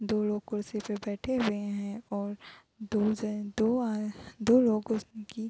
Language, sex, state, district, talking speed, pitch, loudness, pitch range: Hindi, female, Bihar, Gopalganj, 175 wpm, 215 Hz, -31 LUFS, 210-225 Hz